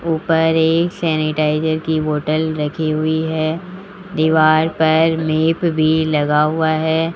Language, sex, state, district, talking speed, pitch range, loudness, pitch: Hindi, male, Rajasthan, Jaipur, 125 wpm, 155-160 Hz, -16 LUFS, 160 Hz